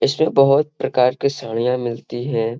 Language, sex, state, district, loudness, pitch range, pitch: Hindi, male, Bihar, Gaya, -19 LUFS, 120-140 Hz, 125 Hz